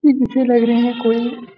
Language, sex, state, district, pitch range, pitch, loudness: Hindi, male, Jharkhand, Jamtara, 235-250 Hz, 240 Hz, -16 LUFS